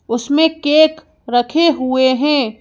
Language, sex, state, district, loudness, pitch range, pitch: Hindi, female, Madhya Pradesh, Bhopal, -14 LUFS, 250-315 Hz, 285 Hz